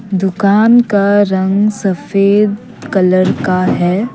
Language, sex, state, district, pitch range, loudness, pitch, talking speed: Hindi, female, Assam, Kamrup Metropolitan, 190-210 Hz, -12 LUFS, 200 Hz, 100 wpm